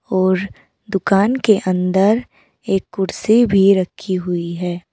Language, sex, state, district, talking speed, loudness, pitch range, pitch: Hindi, female, Uttar Pradesh, Saharanpur, 120 wpm, -17 LUFS, 185-205 Hz, 195 Hz